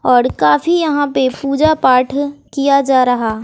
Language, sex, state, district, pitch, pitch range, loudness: Hindi, female, Bihar, West Champaran, 275 Hz, 250-285 Hz, -14 LUFS